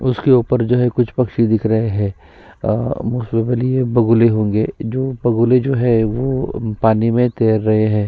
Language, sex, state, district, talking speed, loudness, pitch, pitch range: Hindi, female, Chhattisgarh, Sukma, 165 wpm, -16 LUFS, 115 Hz, 110-125 Hz